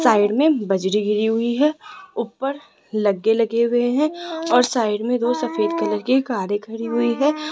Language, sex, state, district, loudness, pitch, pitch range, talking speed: Hindi, female, Rajasthan, Jaipur, -20 LUFS, 235 Hz, 210-275 Hz, 175 wpm